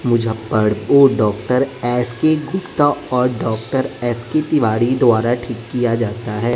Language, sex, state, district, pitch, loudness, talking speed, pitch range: Hindi, male, Bihar, West Champaran, 120 Hz, -17 LUFS, 130 wpm, 115-135 Hz